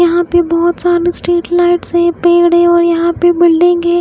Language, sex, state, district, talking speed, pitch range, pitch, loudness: Hindi, female, Himachal Pradesh, Shimla, 210 wpm, 345-350 Hz, 345 Hz, -11 LUFS